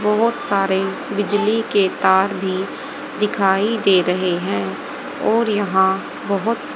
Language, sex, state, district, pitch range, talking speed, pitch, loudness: Hindi, female, Haryana, Rohtak, 190-215 Hz, 125 wpm, 200 Hz, -19 LUFS